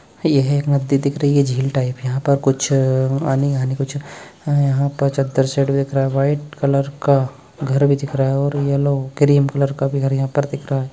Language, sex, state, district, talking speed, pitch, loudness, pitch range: Hindi, male, Bihar, East Champaran, 235 wpm, 140 Hz, -18 LUFS, 135-140 Hz